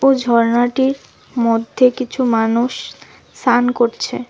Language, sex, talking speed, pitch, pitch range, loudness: Bengali, female, 85 wpm, 245 Hz, 230-255 Hz, -16 LUFS